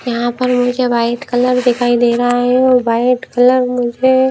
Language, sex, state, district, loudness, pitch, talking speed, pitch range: Hindi, female, Himachal Pradesh, Shimla, -13 LUFS, 245 Hz, 180 wpm, 240-250 Hz